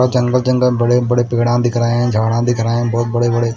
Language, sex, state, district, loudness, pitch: Hindi, male, Odisha, Malkangiri, -15 LUFS, 120 Hz